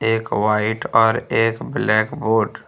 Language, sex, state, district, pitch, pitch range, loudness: Hindi, male, Jharkhand, Ranchi, 110 Hz, 110-115 Hz, -18 LUFS